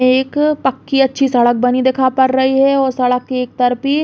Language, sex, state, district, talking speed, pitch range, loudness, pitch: Bundeli, female, Uttar Pradesh, Hamirpur, 235 wpm, 250-270 Hz, -14 LUFS, 260 Hz